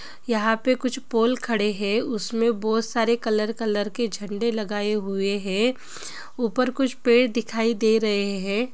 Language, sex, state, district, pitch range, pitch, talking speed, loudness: Hindi, female, Bihar, Gopalganj, 210-240 Hz, 225 Hz, 165 wpm, -23 LUFS